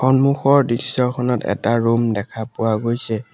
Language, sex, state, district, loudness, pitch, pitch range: Assamese, male, Assam, Sonitpur, -19 LUFS, 120 Hz, 115-130 Hz